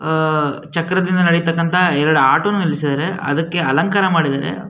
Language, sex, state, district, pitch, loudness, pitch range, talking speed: Kannada, male, Karnataka, Shimoga, 165 Hz, -16 LUFS, 145-180 Hz, 155 wpm